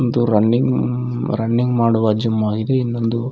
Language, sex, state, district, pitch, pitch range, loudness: Kannada, male, Karnataka, Raichur, 120 Hz, 115-125 Hz, -18 LUFS